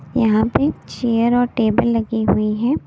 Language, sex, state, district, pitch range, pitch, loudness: Hindi, female, Delhi, New Delhi, 215-240 Hz, 225 Hz, -18 LUFS